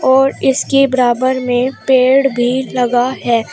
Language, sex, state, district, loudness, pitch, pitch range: Hindi, female, Uttar Pradesh, Shamli, -13 LUFS, 255 Hz, 245-265 Hz